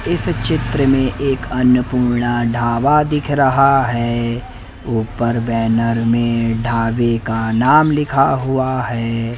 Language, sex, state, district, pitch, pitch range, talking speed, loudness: Hindi, male, Madhya Pradesh, Umaria, 120 Hz, 115-135 Hz, 115 wpm, -16 LUFS